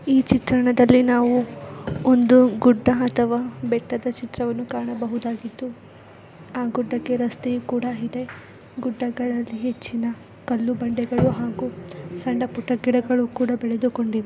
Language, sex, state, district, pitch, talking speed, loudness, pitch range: Kannada, female, Karnataka, Dakshina Kannada, 245 Hz, 100 wpm, -22 LUFS, 235-250 Hz